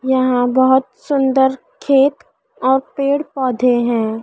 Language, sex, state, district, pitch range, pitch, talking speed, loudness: Hindi, female, Madhya Pradesh, Dhar, 250-270 Hz, 265 Hz, 115 wpm, -16 LUFS